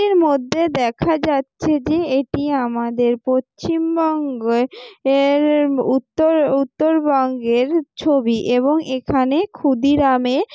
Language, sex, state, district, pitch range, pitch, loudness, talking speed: Bengali, female, West Bengal, Jalpaiguri, 255-315 Hz, 280 Hz, -18 LUFS, 85 wpm